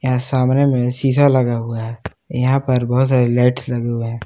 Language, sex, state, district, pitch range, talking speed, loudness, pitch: Hindi, male, Jharkhand, Palamu, 120-130 Hz, 210 wpm, -17 LUFS, 125 Hz